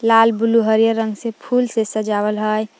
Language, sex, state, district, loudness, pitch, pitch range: Magahi, female, Jharkhand, Palamu, -17 LUFS, 225 Hz, 215-230 Hz